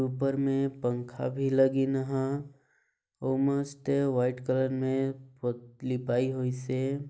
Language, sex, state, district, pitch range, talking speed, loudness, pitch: Chhattisgarhi, male, Chhattisgarh, Balrampur, 130-135 Hz, 120 wpm, -30 LUFS, 130 Hz